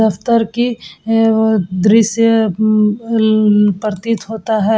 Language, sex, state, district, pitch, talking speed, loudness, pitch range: Hindi, female, Uttar Pradesh, Etah, 220 Hz, 140 wpm, -14 LUFS, 210-225 Hz